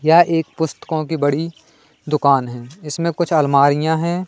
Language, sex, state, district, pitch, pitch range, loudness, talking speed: Hindi, male, Madhya Pradesh, Katni, 160 Hz, 145-165 Hz, -18 LUFS, 155 wpm